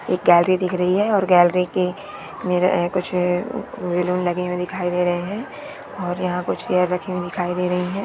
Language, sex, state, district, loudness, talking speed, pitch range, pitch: Hindi, female, West Bengal, Purulia, -21 LUFS, 210 wpm, 180-185 Hz, 180 Hz